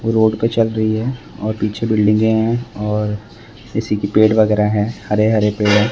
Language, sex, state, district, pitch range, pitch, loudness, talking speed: Hindi, male, Maharashtra, Mumbai Suburban, 105-110 Hz, 110 Hz, -17 LUFS, 190 wpm